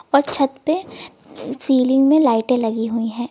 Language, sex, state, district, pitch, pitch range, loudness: Hindi, female, Uttar Pradesh, Lucknow, 260 Hz, 230-280 Hz, -18 LUFS